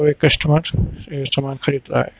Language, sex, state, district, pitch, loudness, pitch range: Hindi, male, Uttar Pradesh, Lucknow, 140 Hz, -19 LUFS, 135-150 Hz